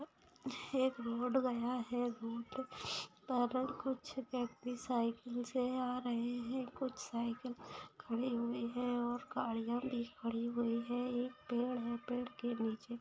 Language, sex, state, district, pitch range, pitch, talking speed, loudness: Hindi, female, Bihar, Begusarai, 235-255 Hz, 245 Hz, 145 wpm, -40 LUFS